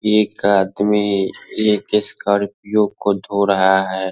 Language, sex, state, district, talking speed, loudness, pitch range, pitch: Hindi, male, Bihar, Darbhanga, 115 wpm, -17 LUFS, 95-105 Hz, 100 Hz